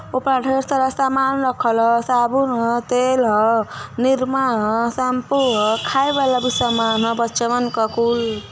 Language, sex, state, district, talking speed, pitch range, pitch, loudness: Hindi, female, Uttar Pradesh, Varanasi, 160 wpm, 230-265 Hz, 245 Hz, -18 LUFS